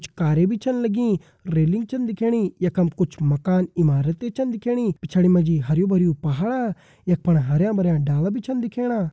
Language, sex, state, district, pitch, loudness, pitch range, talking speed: Garhwali, male, Uttarakhand, Uttarkashi, 185 Hz, -21 LUFS, 165-230 Hz, 185 wpm